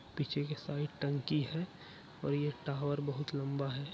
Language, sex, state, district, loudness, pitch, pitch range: Hindi, male, Bihar, Araria, -37 LUFS, 145 Hz, 140-150 Hz